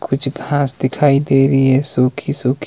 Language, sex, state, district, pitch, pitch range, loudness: Hindi, male, Himachal Pradesh, Shimla, 135 Hz, 130-145 Hz, -15 LUFS